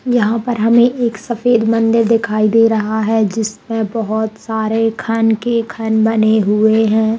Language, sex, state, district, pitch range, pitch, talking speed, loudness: Hindi, female, Bihar, Saharsa, 220-230 Hz, 225 Hz, 165 wpm, -15 LUFS